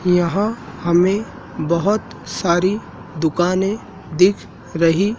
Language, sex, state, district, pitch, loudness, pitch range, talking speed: Hindi, male, Madhya Pradesh, Dhar, 180 Hz, -19 LUFS, 170-200 Hz, 80 wpm